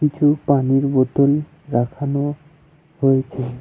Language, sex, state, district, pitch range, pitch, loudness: Bengali, male, West Bengal, Alipurduar, 135-150 Hz, 140 Hz, -19 LUFS